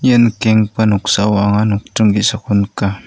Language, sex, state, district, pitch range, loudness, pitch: Garo, male, Meghalaya, North Garo Hills, 100-110 Hz, -14 LUFS, 105 Hz